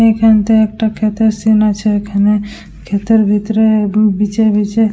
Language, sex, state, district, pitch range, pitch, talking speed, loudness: Bengali, female, West Bengal, Dakshin Dinajpur, 210-220 Hz, 215 Hz, 145 wpm, -12 LUFS